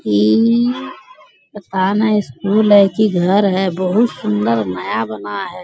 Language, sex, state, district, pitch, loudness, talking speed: Hindi, female, Bihar, Bhagalpur, 195 Hz, -15 LUFS, 140 wpm